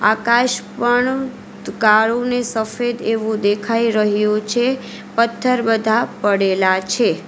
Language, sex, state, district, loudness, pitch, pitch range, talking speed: Gujarati, female, Gujarat, Valsad, -17 LUFS, 230 Hz, 215-240 Hz, 105 wpm